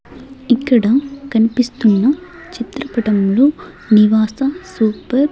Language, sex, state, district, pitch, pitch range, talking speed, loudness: Telugu, female, Andhra Pradesh, Sri Satya Sai, 245 Hz, 220-275 Hz, 70 wpm, -15 LUFS